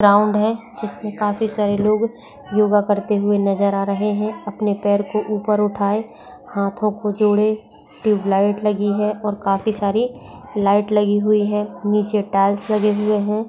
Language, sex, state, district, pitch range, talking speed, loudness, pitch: Hindi, female, Bihar, Saharsa, 205-215 Hz, 160 wpm, -19 LUFS, 210 Hz